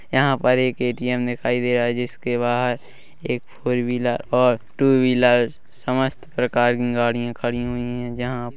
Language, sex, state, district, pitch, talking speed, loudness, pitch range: Hindi, male, Chhattisgarh, Rajnandgaon, 125 Hz, 170 wpm, -21 LUFS, 120-125 Hz